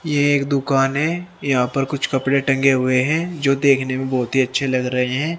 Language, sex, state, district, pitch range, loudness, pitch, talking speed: Hindi, male, Haryana, Rohtak, 130-145 Hz, -19 LUFS, 135 Hz, 225 wpm